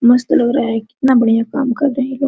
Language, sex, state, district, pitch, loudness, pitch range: Hindi, female, Jharkhand, Sahebganj, 250 Hz, -15 LUFS, 230-265 Hz